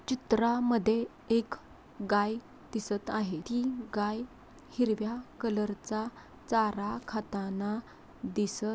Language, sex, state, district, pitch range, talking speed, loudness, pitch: Marathi, female, Maharashtra, Pune, 210-235 Hz, 95 wpm, -32 LUFS, 220 Hz